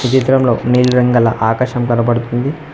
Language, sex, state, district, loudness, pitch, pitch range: Telugu, male, Telangana, Mahabubabad, -14 LUFS, 125 Hz, 120-130 Hz